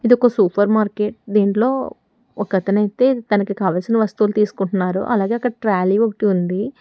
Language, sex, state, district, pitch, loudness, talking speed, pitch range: Telugu, female, Telangana, Hyderabad, 210 Hz, -18 LUFS, 130 wpm, 195-230 Hz